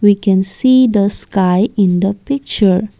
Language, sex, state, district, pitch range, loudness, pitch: English, female, Assam, Kamrup Metropolitan, 190-215 Hz, -13 LUFS, 200 Hz